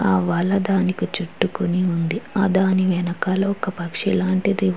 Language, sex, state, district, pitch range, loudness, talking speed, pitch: Telugu, female, Andhra Pradesh, Chittoor, 180-195 Hz, -21 LUFS, 140 wpm, 190 Hz